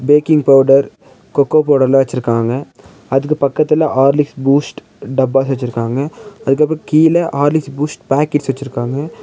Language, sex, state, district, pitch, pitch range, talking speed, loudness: Tamil, male, Tamil Nadu, Nilgiris, 140 Hz, 135-150 Hz, 115 wpm, -14 LUFS